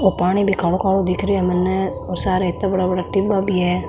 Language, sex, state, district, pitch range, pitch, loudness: Marwari, female, Rajasthan, Nagaur, 180-195 Hz, 190 Hz, -19 LUFS